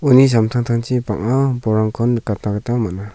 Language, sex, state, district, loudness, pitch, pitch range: Garo, male, Meghalaya, South Garo Hills, -17 LUFS, 115 Hz, 110-125 Hz